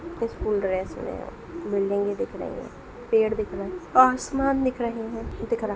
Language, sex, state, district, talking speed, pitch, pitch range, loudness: Hindi, female, Bihar, East Champaran, 190 wpm, 225 Hz, 200-255 Hz, -25 LUFS